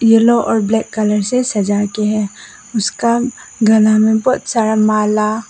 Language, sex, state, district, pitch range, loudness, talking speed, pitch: Hindi, female, Arunachal Pradesh, Papum Pare, 215-230 Hz, -14 LUFS, 155 wpm, 220 Hz